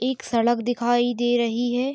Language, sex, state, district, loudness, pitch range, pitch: Hindi, female, Jharkhand, Sahebganj, -22 LUFS, 240-245 Hz, 240 Hz